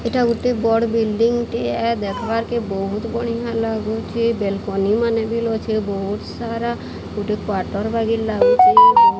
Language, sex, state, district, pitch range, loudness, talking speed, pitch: Odia, female, Odisha, Sambalpur, 215-235 Hz, -19 LUFS, 135 wpm, 230 Hz